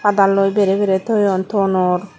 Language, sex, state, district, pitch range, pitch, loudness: Chakma, female, Tripura, Dhalai, 190-205 Hz, 195 Hz, -16 LUFS